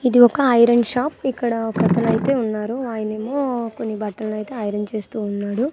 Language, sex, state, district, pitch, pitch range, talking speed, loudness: Telugu, female, Andhra Pradesh, Manyam, 230 Hz, 215-250 Hz, 165 wpm, -20 LUFS